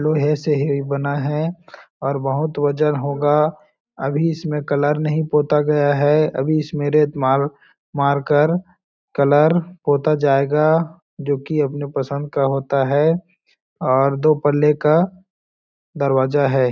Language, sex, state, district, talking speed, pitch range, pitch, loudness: Hindi, male, Chhattisgarh, Balrampur, 135 wpm, 140-155 Hz, 145 Hz, -18 LUFS